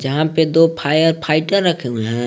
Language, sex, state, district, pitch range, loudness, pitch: Hindi, male, Jharkhand, Garhwa, 140-165 Hz, -16 LUFS, 155 Hz